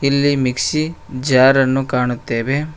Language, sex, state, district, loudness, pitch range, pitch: Kannada, male, Karnataka, Koppal, -16 LUFS, 125-140 Hz, 135 Hz